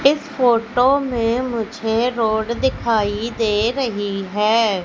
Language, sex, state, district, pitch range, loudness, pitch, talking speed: Hindi, female, Madhya Pradesh, Katni, 220-250 Hz, -19 LUFS, 230 Hz, 110 wpm